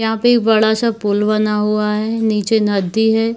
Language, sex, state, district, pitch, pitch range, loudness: Hindi, female, Chhattisgarh, Bilaspur, 220 Hz, 210-225 Hz, -15 LUFS